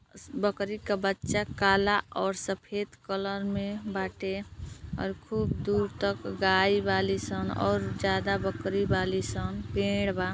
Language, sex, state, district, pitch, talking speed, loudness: Bhojpuri, female, Uttar Pradesh, Gorakhpur, 190 Hz, 145 wpm, -29 LUFS